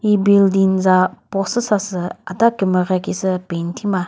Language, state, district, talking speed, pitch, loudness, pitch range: Chakhesang, Nagaland, Dimapur, 160 wpm, 190 Hz, -17 LUFS, 185-205 Hz